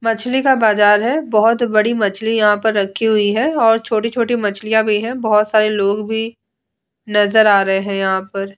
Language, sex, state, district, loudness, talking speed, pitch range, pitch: Hindi, female, Bihar, Vaishali, -15 LUFS, 190 wpm, 205-225 Hz, 215 Hz